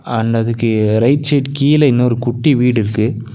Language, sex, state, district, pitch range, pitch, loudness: Tamil, male, Tamil Nadu, Nilgiris, 115-140 Hz, 120 Hz, -14 LUFS